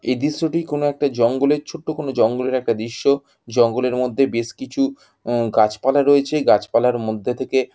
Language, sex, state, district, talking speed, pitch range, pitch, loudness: Bengali, female, West Bengal, Jhargram, 165 wpm, 120-145 Hz, 130 Hz, -19 LUFS